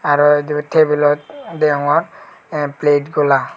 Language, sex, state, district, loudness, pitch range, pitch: Chakma, male, Tripura, Unakoti, -15 LUFS, 145-150 Hz, 150 Hz